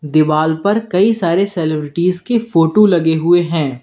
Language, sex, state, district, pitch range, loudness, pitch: Hindi, male, Uttar Pradesh, Lalitpur, 155-200 Hz, -14 LUFS, 170 Hz